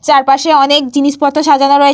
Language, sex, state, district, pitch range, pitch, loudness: Bengali, female, Jharkhand, Jamtara, 280-290 Hz, 285 Hz, -10 LUFS